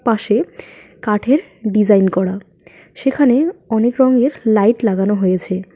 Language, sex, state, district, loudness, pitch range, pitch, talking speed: Bengali, female, West Bengal, Alipurduar, -15 LUFS, 190-245 Hz, 215 Hz, 105 wpm